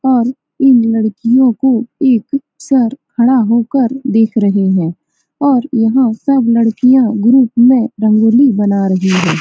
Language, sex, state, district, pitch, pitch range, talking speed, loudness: Hindi, female, Bihar, Saran, 235 Hz, 220-260 Hz, 130 wpm, -12 LUFS